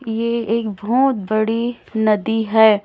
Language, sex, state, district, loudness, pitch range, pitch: Hindi, female, Chhattisgarh, Raipur, -18 LUFS, 215-230 Hz, 225 Hz